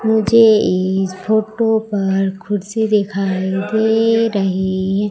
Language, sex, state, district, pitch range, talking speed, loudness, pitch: Hindi, female, Madhya Pradesh, Umaria, 190-220 Hz, 105 wpm, -16 LUFS, 205 Hz